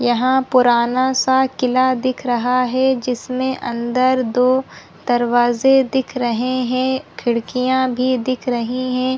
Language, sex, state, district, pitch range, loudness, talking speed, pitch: Hindi, female, Chhattisgarh, Balrampur, 245-260 Hz, -17 LUFS, 125 wpm, 255 Hz